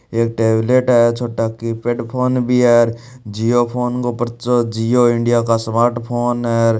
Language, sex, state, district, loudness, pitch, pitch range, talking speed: Hindi, male, Rajasthan, Churu, -16 LUFS, 120 Hz, 115-120 Hz, 175 wpm